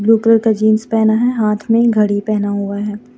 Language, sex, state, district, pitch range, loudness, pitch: Hindi, female, Jharkhand, Deoghar, 205-225 Hz, -14 LUFS, 215 Hz